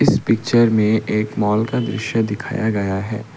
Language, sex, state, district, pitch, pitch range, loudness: Hindi, male, Assam, Kamrup Metropolitan, 110 Hz, 105-110 Hz, -19 LUFS